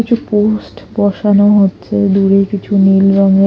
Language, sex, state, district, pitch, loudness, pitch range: Bengali, female, Odisha, Khordha, 200 Hz, -11 LUFS, 195-210 Hz